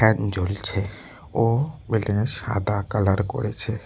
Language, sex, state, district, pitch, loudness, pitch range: Bengali, male, West Bengal, Cooch Behar, 105 Hz, -24 LUFS, 100-115 Hz